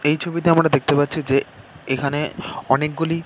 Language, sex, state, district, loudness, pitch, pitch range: Bengali, male, West Bengal, North 24 Parganas, -20 LUFS, 150 Hz, 140-165 Hz